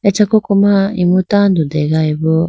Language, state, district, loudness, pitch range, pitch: Idu Mishmi, Arunachal Pradesh, Lower Dibang Valley, -13 LUFS, 160-200 Hz, 185 Hz